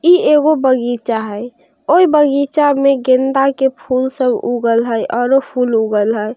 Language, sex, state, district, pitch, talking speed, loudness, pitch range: Hindi, female, Bihar, Darbhanga, 260 Hz, 195 wpm, -14 LUFS, 235-280 Hz